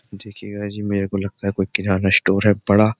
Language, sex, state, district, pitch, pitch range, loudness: Hindi, male, Uttar Pradesh, Jyotiba Phule Nagar, 100 Hz, 95-105 Hz, -19 LUFS